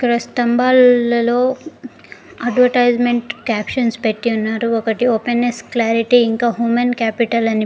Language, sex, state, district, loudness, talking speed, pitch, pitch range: Telugu, female, Andhra Pradesh, Guntur, -16 LUFS, 100 wpm, 235 Hz, 230-245 Hz